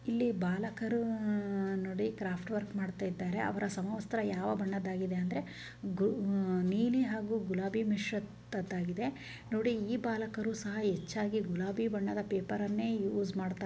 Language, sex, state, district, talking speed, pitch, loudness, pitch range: Kannada, female, Karnataka, Bijapur, 110 wpm, 205 Hz, -35 LUFS, 190-220 Hz